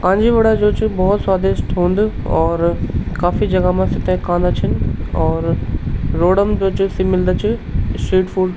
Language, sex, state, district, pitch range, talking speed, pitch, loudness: Garhwali, male, Uttarakhand, Tehri Garhwal, 170-200 Hz, 175 wpm, 185 Hz, -17 LUFS